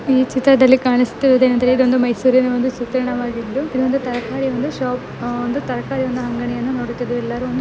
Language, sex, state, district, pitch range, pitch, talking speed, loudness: Kannada, female, Karnataka, Mysore, 245-260 Hz, 255 Hz, 140 wpm, -17 LUFS